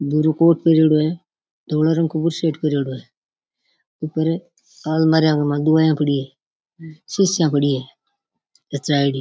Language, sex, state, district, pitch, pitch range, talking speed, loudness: Rajasthani, female, Rajasthan, Nagaur, 155 Hz, 145-160 Hz, 130 wpm, -18 LUFS